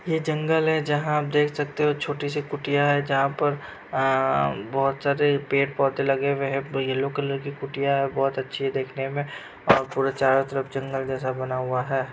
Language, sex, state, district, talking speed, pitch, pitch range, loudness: Hindi, female, Bihar, Sitamarhi, 215 wpm, 140 Hz, 135-145 Hz, -24 LUFS